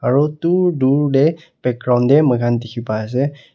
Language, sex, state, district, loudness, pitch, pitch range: Nagamese, male, Nagaland, Kohima, -17 LUFS, 135 Hz, 120-150 Hz